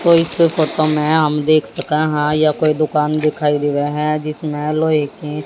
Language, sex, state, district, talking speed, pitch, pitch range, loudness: Hindi, female, Haryana, Jhajjar, 185 wpm, 155 Hz, 150-155 Hz, -16 LUFS